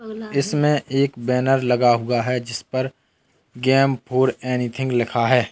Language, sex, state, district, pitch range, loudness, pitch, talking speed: Hindi, male, Uttar Pradesh, Lalitpur, 120-135 Hz, -20 LUFS, 125 Hz, 130 wpm